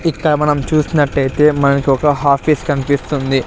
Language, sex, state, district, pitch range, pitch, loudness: Telugu, male, Andhra Pradesh, Sri Satya Sai, 140-150 Hz, 145 Hz, -14 LUFS